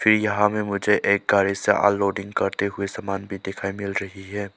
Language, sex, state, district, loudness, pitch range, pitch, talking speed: Hindi, male, Arunachal Pradesh, Lower Dibang Valley, -23 LUFS, 100-105 Hz, 100 Hz, 210 wpm